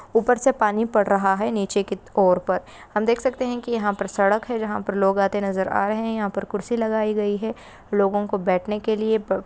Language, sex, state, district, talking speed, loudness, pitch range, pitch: Hindi, female, West Bengal, Purulia, 245 wpm, -22 LUFS, 200-225 Hz, 210 Hz